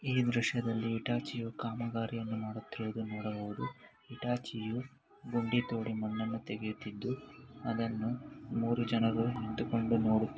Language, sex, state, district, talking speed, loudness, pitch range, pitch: Kannada, male, Karnataka, Gulbarga, 90 wpm, -36 LUFS, 110-120 Hz, 115 Hz